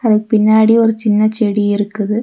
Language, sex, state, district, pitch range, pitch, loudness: Tamil, female, Tamil Nadu, Nilgiris, 210-220 Hz, 215 Hz, -13 LUFS